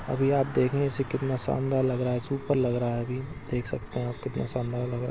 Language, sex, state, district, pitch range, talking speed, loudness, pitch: Hindi, male, Chhattisgarh, Balrampur, 125-135 Hz, 270 wpm, -29 LUFS, 130 Hz